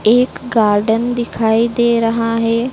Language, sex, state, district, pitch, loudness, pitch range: Hindi, female, Madhya Pradesh, Dhar, 230 Hz, -15 LUFS, 225-235 Hz